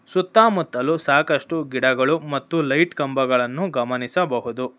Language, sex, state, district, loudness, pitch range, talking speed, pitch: Kannada, female, Karnataka, Bangalore, -20 LUFS, 125-170 Hz, 100 wpm, 140 Hz